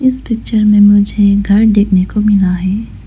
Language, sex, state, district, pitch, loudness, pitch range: Hindi, female, Arunachal Pradesh, Lower Dibang Valley, 205 Hz, -11 LUFS, 200-215 Hz